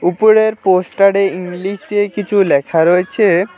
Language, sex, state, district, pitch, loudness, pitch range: Bengali, male, West Bengal, Alipurduar, 195 Hz, -14 LUFS, 180-205 Hz